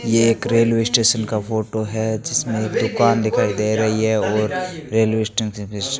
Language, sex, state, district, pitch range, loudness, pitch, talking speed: Hindi, male, Rajasthan, Bikaner, 110-115 Hz, -19 LUFS, 110 Hz, 190 wpm